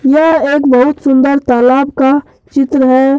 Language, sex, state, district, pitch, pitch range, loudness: Hindi, male, Jharkhand, Deoghar, 275 Hz, 265-285 Hz, -10 LUFS